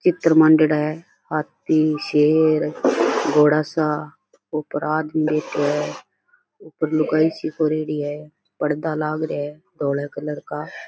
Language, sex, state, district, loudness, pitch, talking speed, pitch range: Rajasthani, female, Rajasthan, Churu, -20 LUFS, 155 Hz, 125 wpm, 150-155 Hz